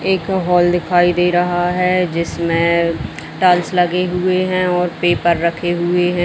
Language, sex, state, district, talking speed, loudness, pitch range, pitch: Hindi, female, Uttar Pradesh, Jalaun, 155 wpm, -16 LUFS, 170-180 Hz, 175 Hz